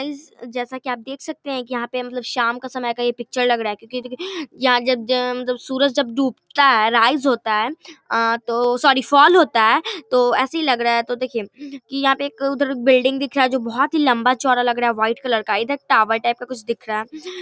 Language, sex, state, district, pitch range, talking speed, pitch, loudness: Maithili, female, Bihar, Darbhanga, 235-275 Hz, 250 wpm, 255 Hz, -19 LUFS